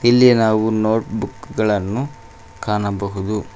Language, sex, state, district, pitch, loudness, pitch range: Kannada, male, Karnataka, Koppal, 110 Hz, -18 LUFS, 105-120 Hz